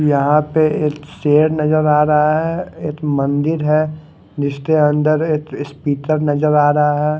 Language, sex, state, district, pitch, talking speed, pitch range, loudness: Hindi, male, Odisha, Khordha, 150 Hz, 160 wpm, 145-155 Hz, -16 LUFS